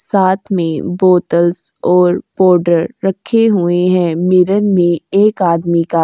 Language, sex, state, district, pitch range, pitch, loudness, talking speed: Hindi, female, Uttar Pradesh, Jyotiba Phule Nagar, 170-190 Hz, 180 Hz, -13 LUFS, 140 wpm